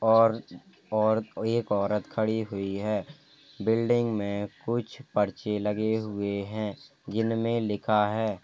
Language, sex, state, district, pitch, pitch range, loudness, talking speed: Hindi, male, Uttar Pradesh, Hamirpur, 110 Hz, 105-115 Hz, -28 LUFS, 135 wpm